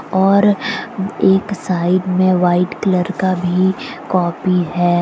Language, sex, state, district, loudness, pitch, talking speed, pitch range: Hindi, female, Jharkhand, Deoghar, -16 LUFS, 185 Hz, 120 wpm, 180-190 Hz